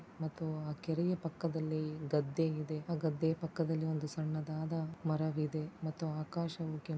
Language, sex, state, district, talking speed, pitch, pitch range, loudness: Kannada, female, Karnataka, Dakshina Kannada, 130 wpm, 160 Hz, 155-165 Hz, -38 LUFS